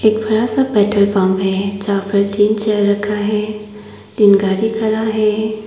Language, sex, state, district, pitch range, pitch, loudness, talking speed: Hindi, female, Arunachal Pradesh, Papum Pare, 200-215 Hz, 210 Hz, -15 LUFS, 160 wpm